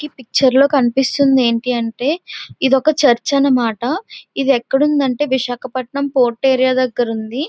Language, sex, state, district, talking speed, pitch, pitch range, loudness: Telugu, female, Andhra Pradesh, Visakhapatnam, 135 wpm, 265 Hz, 250-280 Hz, -16 LUFS